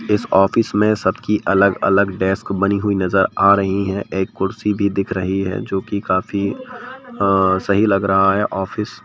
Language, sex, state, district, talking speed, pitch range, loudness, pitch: Hindi, male, Madhya Pradesh, Bhopal, 185 wpm, 95-105 Hz, -17 LUFS, 100 Hz